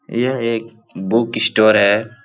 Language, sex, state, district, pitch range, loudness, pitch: Hindi, male, Bihar, Lakhisarai, 110-115 Hz, -16 LUFS, 115 Hz